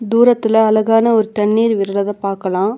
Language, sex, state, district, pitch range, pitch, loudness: Tamil, female, Tamil Nadu, Nilgiris, 200-225 Hz, 220 Hz, -14 LUFS